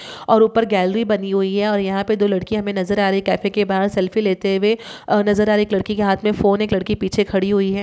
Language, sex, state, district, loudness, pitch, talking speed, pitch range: Hindi, male, Uttar Pradesh, Muzaffarnagar, -18 LUFS, 200 Hz, 305 wpm, 195-210 Hz